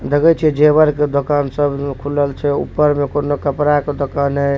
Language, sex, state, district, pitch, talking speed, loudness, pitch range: Maithili, male, Bihar, Supaul, 145 Hz, 195 wpm, -16 LUFS, 140-150 Hz